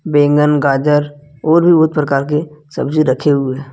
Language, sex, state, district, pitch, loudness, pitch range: Hindi, male, Jharkhand, Ranchi, 150 Hz, -14 LUFS, 140-155 Hz